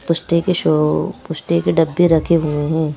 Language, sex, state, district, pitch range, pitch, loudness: Hindi, female, Madhya Pradesh, Bhopal, 150-170 Hz, 160 Hz, -16 LUFS